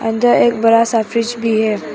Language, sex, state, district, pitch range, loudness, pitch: Hindi, female, Arunachal Pradesh, Papum Pare, 220-230 Hz, -14 LUFS, 230 Hz